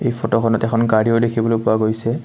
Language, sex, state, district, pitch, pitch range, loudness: Assamese, male, Assam, Kamrup Metropolitan, 115 Hz, 110-115 Hz, -17 LUFS